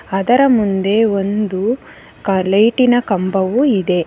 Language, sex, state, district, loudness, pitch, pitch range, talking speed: Kannada, female, Karnataka, Bangalore, -15 LUFS, 205 Hz, 195-235 Hz, 105 wpm